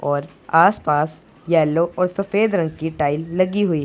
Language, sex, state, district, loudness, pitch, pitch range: Hindi, male, Punjab, Pathankot, -19 LUFS, 165 Hz, 155-185 Hz